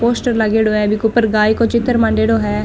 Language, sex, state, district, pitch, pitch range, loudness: Marwari, female, Rajasthan, Nagaur, 225 Hz, 215-230 Hz, -15 LUFS